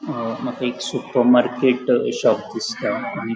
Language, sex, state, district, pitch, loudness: Konkani, male, Goa, North and South Goa, 125 Hz, -20 LUFS